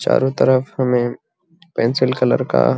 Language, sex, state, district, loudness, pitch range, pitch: Magahi, male, Bihar, Gaya, -18 LUFS, 125-135 Hz, 130 Hz